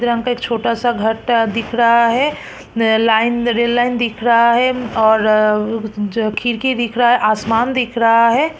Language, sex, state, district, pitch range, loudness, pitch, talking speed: Hindi, female, Chhattisgarh, Kabirdham, 225-240 Hz, -15 LUFS, 235 Hz, 190 wpm